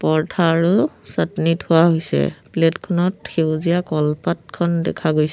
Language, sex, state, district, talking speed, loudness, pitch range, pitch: Assamese, female, Assam, Sonitpur, 125 wpm, -19 LUFS, 155-170 Hz, 165 Hz